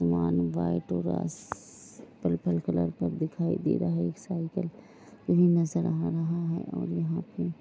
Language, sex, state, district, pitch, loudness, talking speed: Hindi, female, Uttar Pradesh, Jalaun, 85 Hz, -29 LUFS, 140 wpm